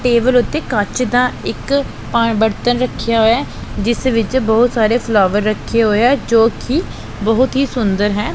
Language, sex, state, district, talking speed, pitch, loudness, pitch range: Punjabi, female, Punjab, Pathankot, 165 wpm, 235 Hz, -15 LUFS, 220-250 Hz